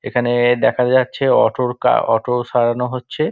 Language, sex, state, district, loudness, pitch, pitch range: Bengali, male, West Bengal, Dakshin Dinajpur, -16 LUFS, 125 Hz, 120-125 Hz